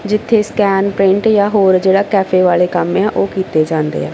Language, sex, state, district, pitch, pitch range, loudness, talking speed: Punjabi, female, Punjab, Kapurthala, 195 Hz, 180-205 Hz, -13 LUFS, 215 wpm